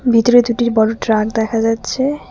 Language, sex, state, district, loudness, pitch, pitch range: Bengali, female, West Bengal, Cooch Behar, -15 LUFS, 230 Hz, 225-245 Hz